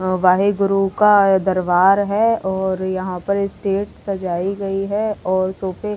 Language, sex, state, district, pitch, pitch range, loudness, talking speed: Hindi, female, Delhi, New Delhi, 195 Hz, 185-200 Hz, -18 LUFS, 140 wpm